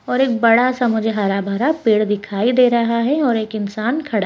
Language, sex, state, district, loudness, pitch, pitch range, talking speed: Hindi, female, Bihar, Begusarai, -17 LUFS, 230 Hz, 215-250 Hz, 195 wpm